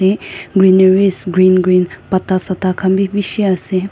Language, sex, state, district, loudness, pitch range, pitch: Nagamese, female, Nagaland, Kohima, -13 LUFS, 185-195 Hz, 190 Hz